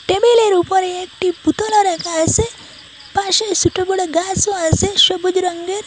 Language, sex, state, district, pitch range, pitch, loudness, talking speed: Bengali, female, Assam, Hailakandi, 360-395 Hz, 375 Hz, -15 LUFS, 145 wpm